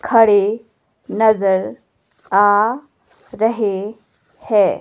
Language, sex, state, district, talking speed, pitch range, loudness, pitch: Hindi, female, Himachal Pradesh, Shimla, 60 wpm, 205-225 Hz, -16 LUFS, 215 Hz